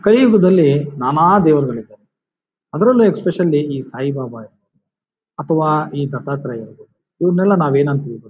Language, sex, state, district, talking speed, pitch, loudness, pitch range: Kannada, male, Karnataka, Bijapur, 95 wpm, 145 Hz, -15 LUFS, 135-180 Hz